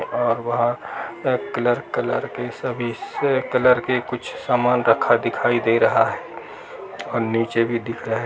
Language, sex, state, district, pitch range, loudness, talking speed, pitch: Hindi, male, Bihar, Gaya, 115-120 Hz, -21 LUFS, 160 wpm, 120 Hz